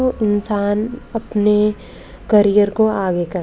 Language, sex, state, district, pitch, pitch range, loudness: Hindi, male, Maharashtra, Gondia, 210 Hz, 205-220 Hz, -17 LUFS